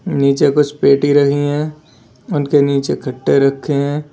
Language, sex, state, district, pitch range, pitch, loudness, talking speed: Hindi, male, Uttar Pradesh, Lalitpur, 140-150 Hz, 145 Hz, -15 LUFS, 145 wpm